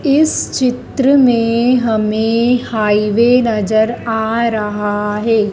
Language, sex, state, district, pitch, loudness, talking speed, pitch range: Hindi, female, Madhya Pradesh, Dhar, 230 Hz, -14 LUFS, 100 wpm, 215-245 Hz